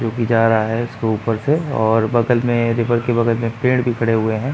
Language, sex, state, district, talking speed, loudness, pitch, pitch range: Hindi, male, Uttar Pradesh, Muzaffarnagar, 250 wpm, -17 LUFS, 115 Hz, 115-120 Hz